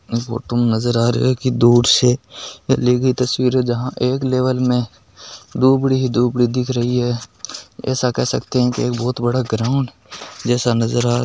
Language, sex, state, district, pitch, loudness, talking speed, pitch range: Hindi, male, Rajasthan, Nagaur, 125 Hz, -17 LUFS, 210 wpm, 120-130 Hz